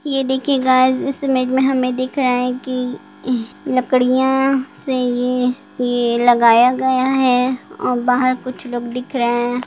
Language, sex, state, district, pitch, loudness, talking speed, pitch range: Hindi, female, Bihar, Sitamarhi, 255 Hz, -17 LUFS, 160 wpm, 250-260 Hz